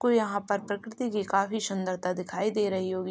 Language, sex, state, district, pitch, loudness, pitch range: Hindi, male, Uttar Pradesh, Jalaun, 200 Hz, -29 LUFS, 185-215 Hz